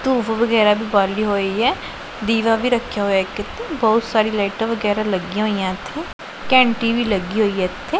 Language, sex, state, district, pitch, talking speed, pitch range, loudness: Punjabi, female, Punjab, Pathankot, 215 Hz, 185 wpm, 200-230 Hz, -19 LUFS